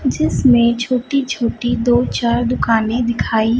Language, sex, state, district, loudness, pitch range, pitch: Hindi, female, Chhattisgarh, Raipur, -16 LUFS, 235-245 Hz, 240 Hz